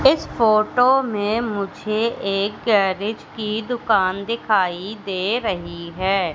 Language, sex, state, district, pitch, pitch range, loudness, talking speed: Hindi, female, Madhya Pradesh, Katni, 210 Hz, 190-230 Hz, -21 LUFS, 115 wpm